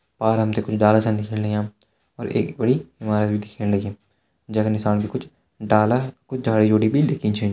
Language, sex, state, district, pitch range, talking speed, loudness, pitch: Hindi, male, Uttarakhand, Uttarkashi, 105-110 Hz, 215 wpm, -21 LUFS, 105 Hz